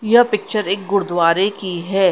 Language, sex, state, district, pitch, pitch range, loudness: Hindi, female, Punjab, Kapurthala, 195 Hz, 185-210 Hz, -17 LUFS